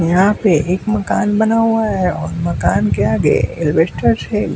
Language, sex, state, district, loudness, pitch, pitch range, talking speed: Hindi, male, Bihar, West Champaran, -15 LUFS, 185 Hz, 165-215 Hz, 170 wpm